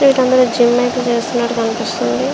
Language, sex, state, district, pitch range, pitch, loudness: Telugu, female, Andhra Pradesh, Srikakulam, 230-250 Hz, 240 Hz, -15 LUFS